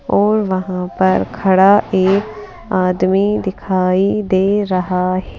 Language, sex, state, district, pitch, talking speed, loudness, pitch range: Hindi, female, Madhya Pradesh, Bhopal, 190 Hz, 100 wpm, -15 LUFS, 185-200 Hz